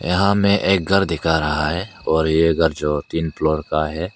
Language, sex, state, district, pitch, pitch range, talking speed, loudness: Hindi, male, Arunachal Pradesh, Papum Pare, 80 Hz, 80-95 Hz, 215 wpm, -19 LUFS